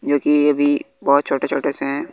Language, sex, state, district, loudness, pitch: Hindi, male, Bihar, West Champaran, -18 LUFS, 145 Hz